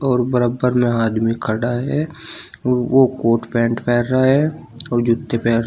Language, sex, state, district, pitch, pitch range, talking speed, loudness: Hindi, male, Uttar Pradesh, Shamli, 120 Hz, 115-130 Hz, 180 wpm, -18 LUFS